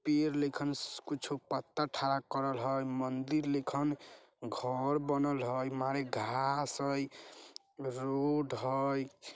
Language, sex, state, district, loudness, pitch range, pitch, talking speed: Bajjika, male, Bihar, Vaishali, -35 LUFS, 130-145 Hz, 140 Hz, 110 wpm